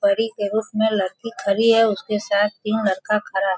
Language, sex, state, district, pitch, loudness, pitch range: Hindi, female, Bihar, Sitamarhi, 210 Hz, -21 LUFS, 200-220 Hz